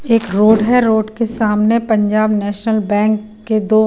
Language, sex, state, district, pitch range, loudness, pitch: Hindi, female, Himachal Pradesh, Shimla, 210-225 Hz, -14 LUFS, 215 Hz